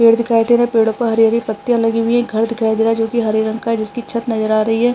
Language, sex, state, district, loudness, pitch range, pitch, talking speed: Hindi, male, Uttarakhand, Tehri Garhwal, -16 LUFS, 220-235 Hz, 230 Hz, 350 wpm